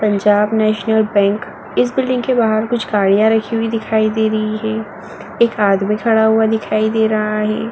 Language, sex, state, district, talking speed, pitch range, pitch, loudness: Hindi, female, Uttar Pradesh, Muzaffarnagar, 185 wpm, 210-225 Hz, 220 Hz, -15 LUFS